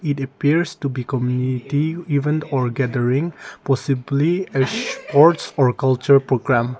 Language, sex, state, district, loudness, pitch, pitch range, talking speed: English, male, Nagaland, Kohima, -19 LUFS, 135 Hz, 130-145 Hz, 125 wpm